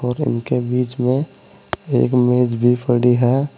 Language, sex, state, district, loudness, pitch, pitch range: Hindi, male, Uttar Pradesh, Saharanpur, -17 LUFS, 125 Hz, 120-125 Hz